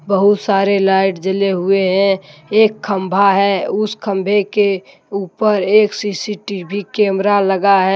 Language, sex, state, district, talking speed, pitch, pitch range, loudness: Hindi, male, Jharkhand, Deoghar, 135 wpm, 200 Hz, 195-205 Hz, -15 LUFS